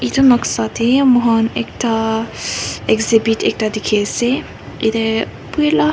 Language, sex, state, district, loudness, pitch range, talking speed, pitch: Nagamese, female, Nagaland, Kohima, -16 LUFS, 210-240 Hz, 130 wpm, 225 Hz